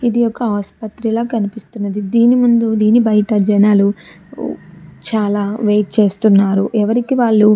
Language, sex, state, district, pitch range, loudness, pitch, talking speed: Telugu, female, Andhra Pradesh, Chittoor, 205-230 Hz, -14 LUFS, 215 Hz, 125 wpm